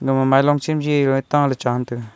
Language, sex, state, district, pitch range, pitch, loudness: Wancho, male, Arunachal Pradesh, Longding, 130-145 Hz, 135 Hz, -18 LUFS